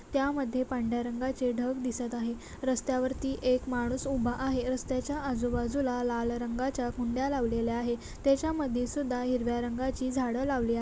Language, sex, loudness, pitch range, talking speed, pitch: Marathi, female, -31 LUFS, 240-265 Hz, 140 wpm, 255 Hz